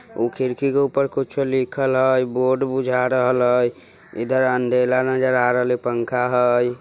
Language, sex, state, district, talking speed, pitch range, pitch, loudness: Bajjika, male, Bihar, Vaishali, 160 wpm, 125-130 Hz, 125 Hz, -20 LUFS